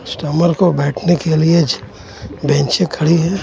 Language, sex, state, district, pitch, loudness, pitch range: Hindi, male, Jharkhand, Ranchi, 155 Hz, -15 LUFS, 145-170 Hz